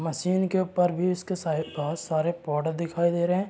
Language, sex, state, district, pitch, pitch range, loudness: Hindi, male, Chhattisgarh, Raigarh, 170 Hz, 160-180 Hz, -27 LUFS